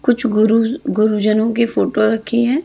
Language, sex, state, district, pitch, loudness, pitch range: Hindi, female, Chhattisgarh, Raipur, 225 Hz, -16 LUFS, 215-240 Hz